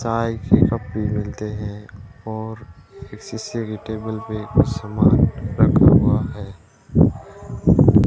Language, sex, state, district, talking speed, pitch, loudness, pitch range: Hindi, male, Rajasthan, Bikaner, 120 wpm, 110 Hz, -19 LUFS, 105-115 Hz